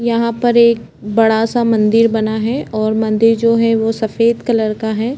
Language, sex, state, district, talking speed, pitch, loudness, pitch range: Hindi, female, Chhattisgarh, Korba, 195 wpm, 225 Hz, -14 LUFS, 220-235 Hz